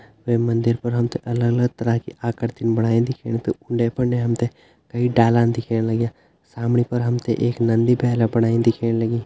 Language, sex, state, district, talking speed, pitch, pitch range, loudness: Hindi, male, Uttarakhand, Tehri Garhwal, 175 wpm, 115 Hz, 115-120 Hz, -21 LUFS